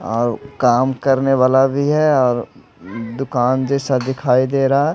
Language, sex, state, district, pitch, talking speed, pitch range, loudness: Hindi, male, Odisha, Malkangiri, 130 Hz, 145 wpm, 125-135 Hz, -16 LUFS